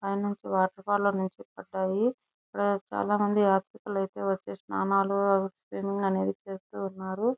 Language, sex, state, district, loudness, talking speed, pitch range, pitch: Telugu, female, Andhra Pradesh, Chittoor, -29 LUFS, 130 wpm, 190-205 Hz, 195 Hz